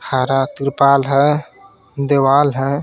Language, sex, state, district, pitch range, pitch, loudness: Hindi, male, Jharkhand, Garhwa, 135-145 Hz, 140 Hz, -15 LUFS